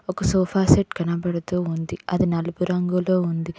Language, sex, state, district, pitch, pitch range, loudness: Telugu, female, Telangana, Mahabubabad, 180 Hz, 170-180 Hz, -22 LUFS